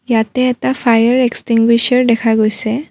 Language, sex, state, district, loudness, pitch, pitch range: Assamese, female, Assam, Kamrup Metropolitan, -13 LUFS, 235 Hz, 225-250 Hz